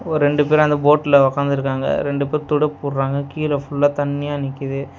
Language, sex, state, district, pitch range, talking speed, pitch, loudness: Tamil, male, Tamil Nadu, Nilgiris, 140-150 Hz, 170 wpm, 145 Hz, -18 LUFS